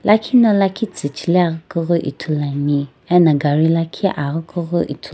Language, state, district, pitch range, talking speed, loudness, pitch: Sumi, Nagaland, Dimapur, 145-180 Hz, 140 wpm, -17 LUFS, 165 Hz